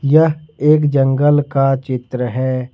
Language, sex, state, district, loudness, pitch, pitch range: Hindi, male, Jharkhand, Ranchi, -15 LUFS, 135 Hz, 130-150 Hz